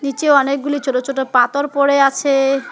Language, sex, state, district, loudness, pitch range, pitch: Bengali, female, West Bengal, Alipurduar, -15 LUFS, 270-280 Hz, 275 Hz